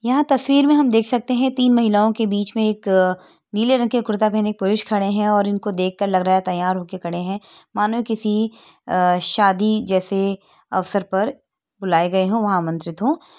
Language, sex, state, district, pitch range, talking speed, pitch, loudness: Hindi, female, Uttar Pradesh, Etah, 185-225 Hz, 205 wpm, 205 Hz, -19 LUFS